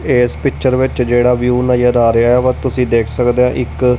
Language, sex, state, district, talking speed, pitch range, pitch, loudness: Punjabi, male, Punjab, Kapurthala, 210 wpm, 120-125 Hz, 125 Hz, -13 LUFS